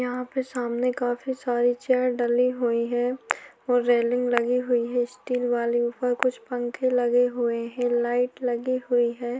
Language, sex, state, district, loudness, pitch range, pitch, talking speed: Hindi, female, Chhattisgarh, Korba, -25 LUFS, 240-250 Hz, 245 Hz, 165 wpm